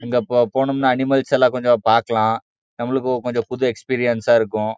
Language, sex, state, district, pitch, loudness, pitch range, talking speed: Tamil, male, Karnataka, Chamarajanagar, 120 Hz, -18 LUFS, 115-130 Hz, 140 wpm